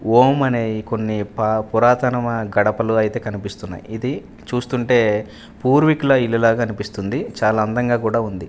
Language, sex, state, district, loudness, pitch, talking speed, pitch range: Telugu, male, Andhra Pradesh, Manyam, -19 LUFS, 115 Hz, 125 wpm, 105-125 Hz